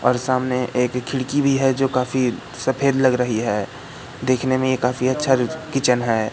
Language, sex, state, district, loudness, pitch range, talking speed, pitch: Hindi, male, Madhya Pradesh, Katni, -20 LUFS, 125-135 Hz, 170 wpm, 130 Hz